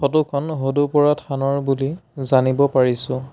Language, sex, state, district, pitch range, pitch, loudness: Assamese, male, Assam, Sonitpur, 135-145 Hz, 140 Hz, -19 LUFS